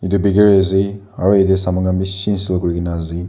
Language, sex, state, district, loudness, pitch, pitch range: Nagamese, male, Nagaland, Dimapur, -16 LUFS, 95 Hz, 90-100 Hz